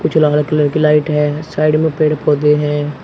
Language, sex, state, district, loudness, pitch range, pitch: Hindi, male, Uttar Pradesh, Shamli, -14 LUFS, 150-155 Hz, 150 Hz